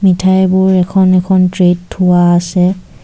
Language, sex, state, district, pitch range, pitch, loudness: Assamese, female, Assam, Kamrup Metropolitan, 180-185 Hz, 185 Hz, -11 LUFS